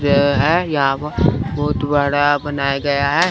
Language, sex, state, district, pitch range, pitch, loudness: Hindi, male, Chandigarh, Chandigarh, 140-145 Hz, 145 Hz, -17 LUFS